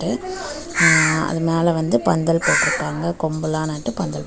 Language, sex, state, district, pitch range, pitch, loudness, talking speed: Tamil, female, Tamil Nadu, Chennai, 155-165 Hz, 160 Hz, -19 LUFS, 140 wpm